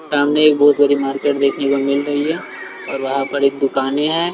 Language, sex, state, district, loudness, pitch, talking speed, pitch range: Hindi, male, Bihar, West Champaran, -16 LUFS, 140 Hz, 220 wpm, 135-145 Hz